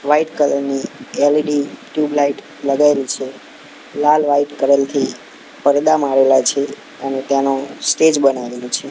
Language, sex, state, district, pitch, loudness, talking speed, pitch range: Gujarati, male, Gujarat, Gandhinagar, 140 Hz, -16 LUFS, 130 wpm, 135-145 Hz